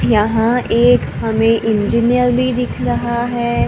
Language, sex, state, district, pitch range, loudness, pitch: Hindi, female, Maharashtra, Gondia, 225-245 Hz, -15 LUFS, 235 Hz